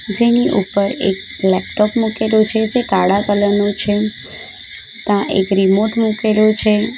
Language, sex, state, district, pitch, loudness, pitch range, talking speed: Gujarati, female, Gujarat, Valsad, 210 Hz, -15 LUFS, 200-220 Hz, 140 wpm